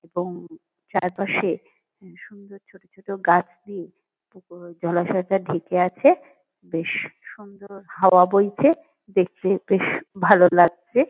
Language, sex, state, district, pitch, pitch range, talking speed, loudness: Bengali, female, West Bengal, Kolkata, 190 Hz, 175-200 Hz, 110 wpm, -21 LUFS